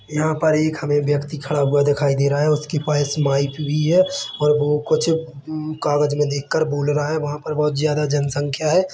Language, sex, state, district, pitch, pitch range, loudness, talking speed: Hindi, male, Chhattisgarh, Bilaspur, 150 Hz, 145-155 Hz, -20 LUFS, 220 wpm